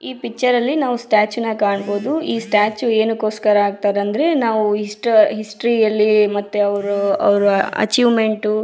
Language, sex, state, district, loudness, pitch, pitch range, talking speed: Kannada, female, Karnataka, Raichur, -17 LUFS, 215 Hz, 205-235 Hz, 145 wpm